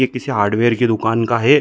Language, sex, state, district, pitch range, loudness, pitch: Hindi, male, Chhattisgarh, Bilaspur, 110-125 Hz, -16 LUFS, 120 Hz